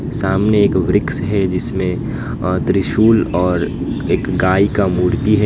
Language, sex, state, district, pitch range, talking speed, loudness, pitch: Hindi, male, West Bengal, Alipurduar, 90-105 Hz, 130 wpm, -16 LUFS, 100 Hz